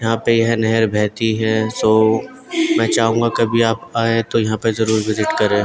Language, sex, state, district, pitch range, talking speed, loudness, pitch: Hindi, male, Uttarakhand, Tehri Garhwal, 110-115 Hz, 190 wpm, -17 LUFS, 115 Hz